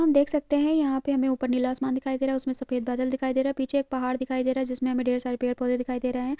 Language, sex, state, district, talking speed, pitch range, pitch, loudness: Hindi, female, Uttarakhand, Uttarkashi, 335 wpm, 255-270 Hz, 260 Hz, -26 LUFS